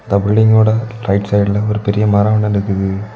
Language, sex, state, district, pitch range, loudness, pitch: Tamil, male, Tamil Nadu, Kanyakumari, 100-110 Hz, -14 LUFS, 105 Hz